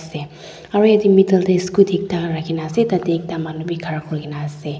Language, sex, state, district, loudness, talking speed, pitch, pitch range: Nagamese, female, Nagaland, Dimapur, -18 LUFS, 225 wpm, 170 Hz, 155-185 Hz